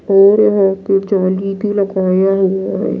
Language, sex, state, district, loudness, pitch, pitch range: Hindi, female, Odisha, Nuapada, -14 LUFS, 195 Hz, 190-200 Hz